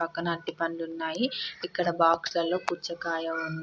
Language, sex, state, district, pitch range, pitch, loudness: Telugu, female, Andhra Pradesh, Guntur, 165-170 Hz, 165 Hz, -29 LUFS